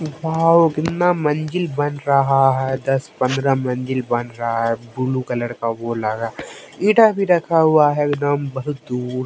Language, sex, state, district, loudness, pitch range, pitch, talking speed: Hindi, male, Haryana, Jhajjar, -19 LUFS, 125-155 Hz, 135 Hz, 160 wpm